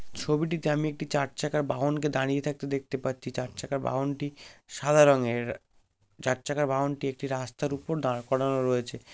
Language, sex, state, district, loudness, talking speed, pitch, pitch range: Bengali, male, West Bengal, Malda, -29 LUFS, 170 wpm, 135 Hz, 130-145 Hz